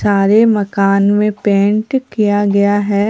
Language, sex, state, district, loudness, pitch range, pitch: Hindi, female, Bihar, Katihar, -13 LUFS, 200-210 Hz, 205 Hz